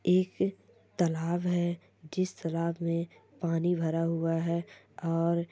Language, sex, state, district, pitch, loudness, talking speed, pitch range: Hindi, male, Chhattisgarh, Sukma, 170 Hz, -31 LUFS, 120 wpm, 165-175 Hz